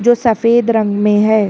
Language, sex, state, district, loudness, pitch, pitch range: Hindi, female, Karnataka, Bangalore, -13 LUFS, 220 Hz, 210-235 Hz